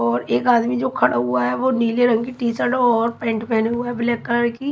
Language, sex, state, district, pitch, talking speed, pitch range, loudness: Hindi, female, Haryana, Charkhi Dadri, 235 Hz, 255 wpm, 225-245 Hz, -19 LUFS